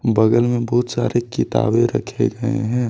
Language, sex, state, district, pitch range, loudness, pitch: Hindi, male, Jharkhand, Deoghar, 115-120 Hz, -19 LUFS, 120 Hz